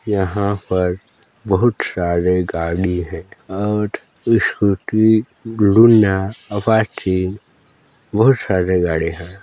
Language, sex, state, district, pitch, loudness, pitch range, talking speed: Hindi, male, Chhattisgarh, Balrampur, 100 Hz, -17 LUFS, 95-110 Hz, 90 wpm